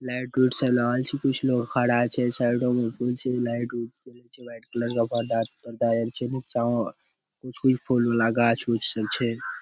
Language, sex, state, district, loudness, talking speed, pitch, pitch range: Maithili, male, Bihar, Darbhanga, -25 LUFS, 205 wpm, 120 Hz, 115-125 Hz